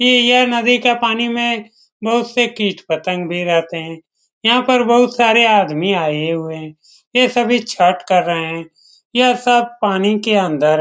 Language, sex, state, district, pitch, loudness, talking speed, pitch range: Hindi, male, Bihar, Saran, 215 Hz, -15 LUFS, 185 wpm, 170-240 Hz